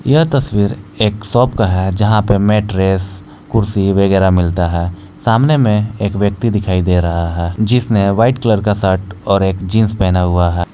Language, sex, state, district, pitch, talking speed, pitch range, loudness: Hindi, male, Jharkhand, Palamu, 100 Hz, 180 wpm, 95-110 Hz, -14 LUFS